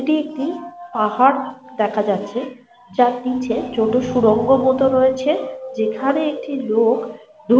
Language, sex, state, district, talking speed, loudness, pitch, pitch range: Bengali, female, Jharkhand, Sahebganj, 120 wpm, -19 LUFS, 255 Hz, 230-270 Hz